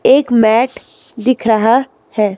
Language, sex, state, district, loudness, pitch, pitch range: Hindi, female, Himachal Pradesh, Shimla, -13 LUFS, 235 Hz, 220-260 Hz